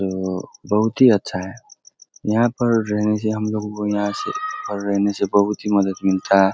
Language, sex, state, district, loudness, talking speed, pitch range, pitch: Hindi, male, Bihar, East Champaran, -20 LUFS, 185 wpm, 100-110 Hz, 105 Hz